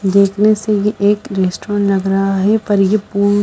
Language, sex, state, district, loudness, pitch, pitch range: Hindi, female, Punjab, Kapurthala, -14 LUFS, 200 Hz, 195-210 Hz